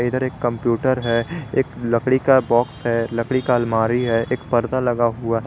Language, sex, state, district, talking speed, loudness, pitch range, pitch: Hindi, male, Jharkhand, Garhwa, 195 wpm, -20 LUFS, 115-130 Hz, 120 Hz